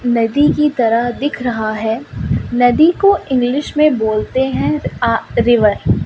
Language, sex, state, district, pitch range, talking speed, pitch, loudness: Hindi, female, Madhya Pradesh, Umaria, 230-290 Hz, 150 wpm, 245 Hz, -15 LUFS